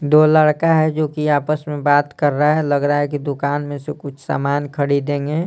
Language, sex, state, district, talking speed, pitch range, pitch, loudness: Hindi, male, Bihar, Patna, 230 wpm, 145-150 Hz, 145 Hz, -17 LUFS